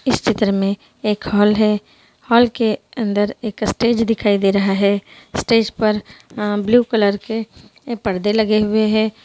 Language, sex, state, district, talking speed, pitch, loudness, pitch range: Hindi, female, Bihar, Muzaffarpur, 150 wpm, 215 Hz, -18 LUFS, 205-225 Hz